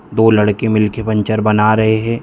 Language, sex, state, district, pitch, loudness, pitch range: Hindi, male, Bihar, Muzaffarpur, 110 Hz, -14 LUFS, 105-110 Hz